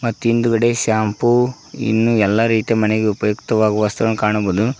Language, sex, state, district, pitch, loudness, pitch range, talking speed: Kannada, male, Karnataka, Koppal, 110 Hz, -17 LUFS, 105-115 Hz, 110 wpm